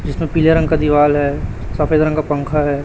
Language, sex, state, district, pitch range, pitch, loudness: Hindi, male, Chhattisgarh, Raipur, 145-155 Hz, 150 Hz, -16 LUFS